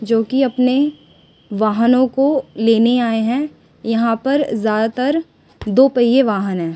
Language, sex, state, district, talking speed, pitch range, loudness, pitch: Hindi, female, Delhi, New Delhi, 135 wpm, 225-270 Hz, -16 LUFS, 240 Hz